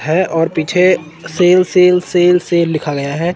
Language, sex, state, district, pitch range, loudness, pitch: Hindi, male, Chandigarh, Chandigarh, 160-180 Hz, -13 LUFS, 175 Hz